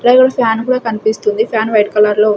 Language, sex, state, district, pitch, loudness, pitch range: Telugu, female, Andhra Pradesh, Sri Satya Sai, 225 Hz, -13 LUFS, 215-255 Hz